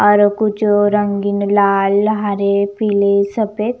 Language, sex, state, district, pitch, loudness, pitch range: Hindi, female, Punjab, Kapurthala, 205 Hz, -15 LUFS, 200-210 Hz